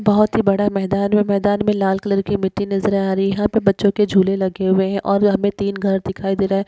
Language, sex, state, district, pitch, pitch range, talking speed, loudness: Hindi, female, Maharashtra, Dhule, 200 Hz, 195-205 Hz, 270 wpm, -18 LUFS